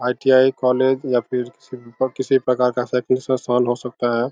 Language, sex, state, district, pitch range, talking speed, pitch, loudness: Hindi, male, Bihar, Begusarai, 125-130 Hz, 155 wpm, 125 Hz, -19 LUFS